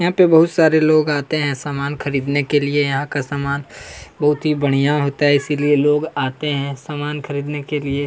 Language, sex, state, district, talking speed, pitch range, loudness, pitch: Hindi, male, Chhattisgarh, Kabirdham, 200 wpm, 140-150 Hz, -18 LUFS, 145 Hz